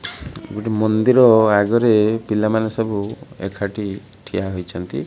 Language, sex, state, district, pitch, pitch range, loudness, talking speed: Odia, male, Odisha, Malkangiri, 105 Hz, 100-110 Hz, -18 LUFS, 95 wpm